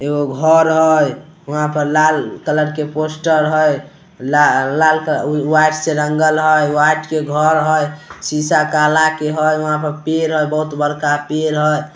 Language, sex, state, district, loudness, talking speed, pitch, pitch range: Hindi, male, Bihar, Samastipur, -15 LUFS, 165 wpm, 155 Hz, 150-155 Hz